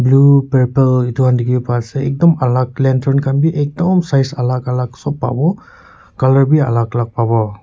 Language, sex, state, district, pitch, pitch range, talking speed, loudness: Nagamese, male, Nagaland, Kohima, 130 Hz, 125-140 Hz, 175 wpm, -14 LUFS